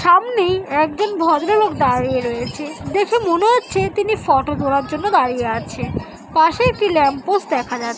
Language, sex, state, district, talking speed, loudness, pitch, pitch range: Bengali, female, West Bengal, Jhargram, 145 wpm, -17 LUFS, 335 Hz, 275-410 Hz